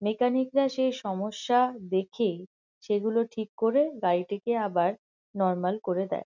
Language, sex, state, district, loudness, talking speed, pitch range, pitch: Bengali, female, West Bengal, Kolkata, -28 LUFS, 125 wpm, 190-245 Hz, 210 Hz